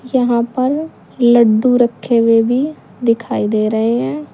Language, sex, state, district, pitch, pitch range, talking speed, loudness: Hindi, female, Uttar Pradesh, Saharanpur, 235 Hz, 225-250 Hz, 140 wpm, -15 LUFS